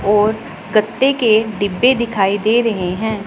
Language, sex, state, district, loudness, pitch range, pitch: Hindi, female, Punjab, Pathankot, -16 LUFS, 205-230 Hz, 215 Hz